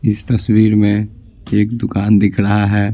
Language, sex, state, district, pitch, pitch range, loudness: Hindi, male, Bihar, Patna, 105 Hz, 105-110 Hz, -14 LUFS